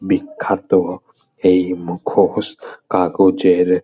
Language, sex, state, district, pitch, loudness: Bengali, male, West Bengal, Purulia, 90 Hz, -17 LUFS